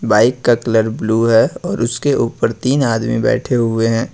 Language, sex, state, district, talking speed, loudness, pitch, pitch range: Hindi, male, Jharkhand, Ranchi, 190 wpm, -15 LUFS, 115 Hz, 110-125 Hz